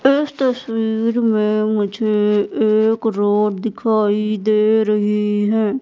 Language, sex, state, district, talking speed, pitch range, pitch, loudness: Hindi, female, Madhya Pradesh, Katni, 105 wpm, 210-225 Hz, 215 Hz, -17 LUFS